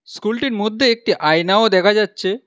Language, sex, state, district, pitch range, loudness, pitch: Bengali, male, West Bengal, Alipurduar, 190-225 Hz, -16 LUFS, 215 Hz